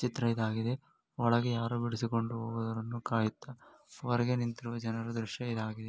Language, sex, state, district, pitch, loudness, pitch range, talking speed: Kannada, male, Karnataka, Shimoga, 115 Hz, -34 LUFS, 115-120 Hz, 120 wpm